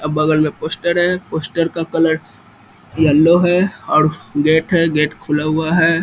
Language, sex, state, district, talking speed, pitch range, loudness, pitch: Hindi, male, Bihar, East Champaran, 170 wpm, 155-175 Hz, -16 LUFS, 160 Hz